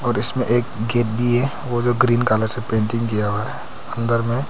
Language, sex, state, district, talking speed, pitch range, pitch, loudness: Hindi, male, Arunachal Pradesh, Papum Pare, 215 wpm, 110-120 Hz, 120 Hz, -19 LUFS